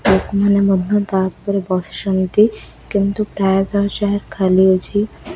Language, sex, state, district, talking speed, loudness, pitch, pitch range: Odia, female, Odisha, Khordha, 90 wpm, -17 LUFS, 200 Hz, 190-205 Hz